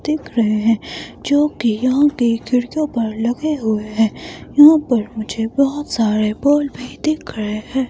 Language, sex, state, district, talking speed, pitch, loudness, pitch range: Hindi, female, Himachal Pradesh, Shimla, 165 wpm, 240 Hz, -17 LUFS, 220-290 Hz